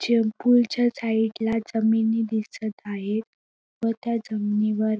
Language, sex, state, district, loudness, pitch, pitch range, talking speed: Marathi, female, Maharashtra, Sindhudurg, -24 LUFS, 225 Hz, 215-230 Hz, 145 wpm